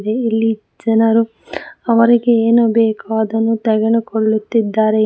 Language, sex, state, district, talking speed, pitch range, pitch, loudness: Kannada, female, Karnataka, Bangalore, 85 wpm, 220-230 Hz, 225 Hz, -15 LUFS